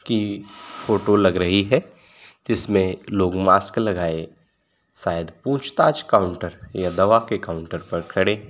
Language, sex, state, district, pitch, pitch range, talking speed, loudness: Hindi, male, Uttar Pradesh, Varanasi, 100 Hz, 90-110 Hz, 135 wpm, -21 LUFS